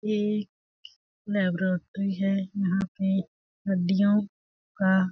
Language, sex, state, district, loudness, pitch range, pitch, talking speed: Hindi, female, Chhattisgarh, Balrampur, -27 LUFS, 190-205 Hz, 195 Hz, 95 wpm